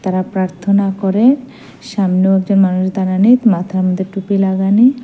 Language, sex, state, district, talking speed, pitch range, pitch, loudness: Bengali, female, Assam, Hailakandi, 130 wpm, 190-205 Hz, 195 Hz, -14 LUFS